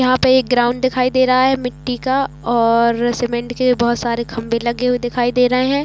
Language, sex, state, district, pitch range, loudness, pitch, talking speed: Hindi, female, Chhattisgarh, Raigarh, 240-255 Hz, -16 LUFS, 250 Hz, 225 wpm